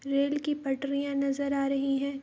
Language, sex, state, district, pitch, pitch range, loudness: Hindi, female, Bihar, Saharsa, 275 Hz, 275-280 Hz, -29 LUFS